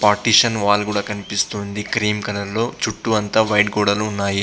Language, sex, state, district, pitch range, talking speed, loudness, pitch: Telugu, male, Andhra Pradesh, Visakhapatnam, 100-105 Hz, 160 wpm, -18 LUFS, 105 Hz